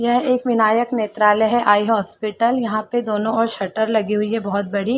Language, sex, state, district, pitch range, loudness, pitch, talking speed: Hindi, female, Chhattisgarh, Bilaspur, 210-235 Hz, -17 LUFS, 220 Hz, 215 wpm